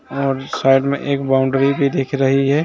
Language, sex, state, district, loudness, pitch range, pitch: Hindi, female, Jharkhand, Jamtara, -17 LUFS, 135-140 Hz, 135 Hz